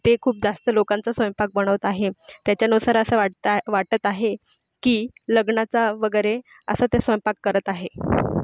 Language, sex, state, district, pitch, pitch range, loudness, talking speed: Marathi, female, Maharashtra, Aurangabad, 220 Hz, 205-235 Hz, -22 LUFS, 140 wpm